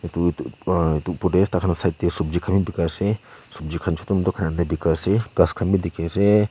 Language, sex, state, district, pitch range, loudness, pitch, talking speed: Nagamese, male, Nagaland, Kohima, 85-95 Hz, -22 LUFS, 90 Hz, 165 wpm